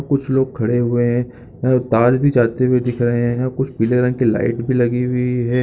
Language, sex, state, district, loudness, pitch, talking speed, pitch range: Hindi, male, Chhattisgarh, Bilaspur, -17 LUFS, 125 Hz, 235 wpm, 120-130 Hz